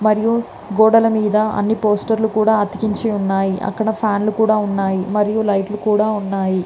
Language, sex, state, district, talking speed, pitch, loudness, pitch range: Telugu, female, Andhra Pradesh, Visakhapatnam, 190 wpm, 210 Hz, -17 LUFS, 200-220 Hz